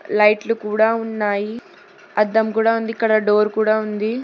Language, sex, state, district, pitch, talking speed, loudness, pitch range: Telugu, female, Telangana, Hyderabad, 220 Hz, 140 wpm, -19 LUFS, 210-225 Hz